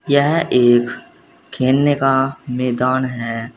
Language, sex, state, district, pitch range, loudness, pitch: Hindi, male, Uttar Pradesh, Saharanpur, 125-135 Hz, -16 LUFS, 130 Hz